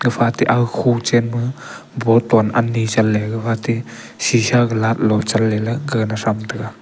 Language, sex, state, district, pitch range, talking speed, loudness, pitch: Wancho, male, Arunachal Pradesh, Longding, 110-120 Hz, 150 wpm, -17 LUFS, 115 Hz